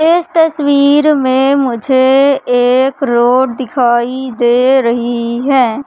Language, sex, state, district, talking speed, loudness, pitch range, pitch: Hindi, female, Madhya Pradesh, Katni, 100 wpm, -11 LUFS, 245-280 Hz, 260 Hz